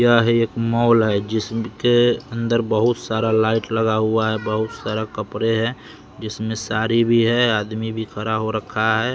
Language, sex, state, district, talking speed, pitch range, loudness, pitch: Hindi, male, Bihar, West Champaran, 170 wpm, 110-115 Hz, -20 LUFS, 110 Hz